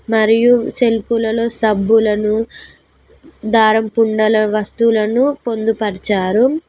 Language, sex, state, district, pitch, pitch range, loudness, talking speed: Telugu, female, Telangana, Mahabubabad, 225 Hz, 215-230 Hz, -15 LUFS, 70 wpm